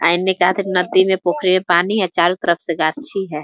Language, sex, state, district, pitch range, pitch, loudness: Hindi, female, Bihar, Muzaffarpur, 170-190 Hz, 180 Hz, -17 LUFS